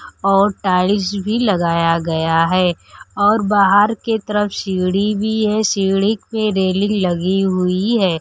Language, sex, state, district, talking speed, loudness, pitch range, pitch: Hindi, female, Bihar, Kaimur, 140 wpm, -16 LUFS, 185-210 Hz, 195 Hz